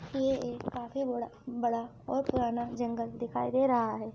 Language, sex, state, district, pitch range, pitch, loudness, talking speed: Hindi, female, Uttar Pradesh, Ghazipur, 230-255 Hz, 240 Hz, -32 LUFS, 175 wpm